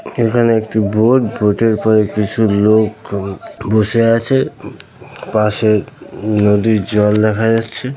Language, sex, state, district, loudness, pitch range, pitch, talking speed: Bengali, male, West Bengal, North 24 Parganas, -14 LUFS, 105-115 Hz, 110 Hz, 120 wpm